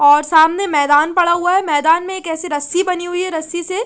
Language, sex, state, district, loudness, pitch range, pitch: Hindi, female, Chandigarh, Chandigarh, -15 LUFS, 310-365 Hz, 345 Hz